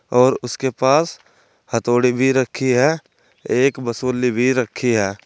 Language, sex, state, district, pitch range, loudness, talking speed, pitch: Hindi, male, Uttar Pradesh, Saharanpur, 120-130 Hz, -18 LUFS, 135 wpm, 125 Hz